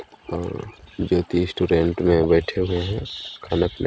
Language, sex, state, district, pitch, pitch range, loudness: Hindi, male, Chhattisgarh, Balrampur, 90 Hz, 85-90 Hz, -22 LUFS